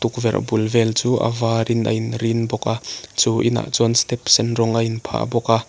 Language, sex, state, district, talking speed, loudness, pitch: Mizo, male, Mizoram, Aizawl, 230 wpm, -19 LUFS, 115 Hz